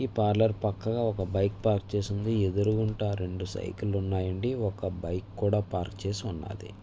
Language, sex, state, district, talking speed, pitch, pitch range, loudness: Telugu, male, Andhra Pradesh, Visakhapatnam, 140 wpm, 100 Hz, 95-110 Hz, -30 LUFS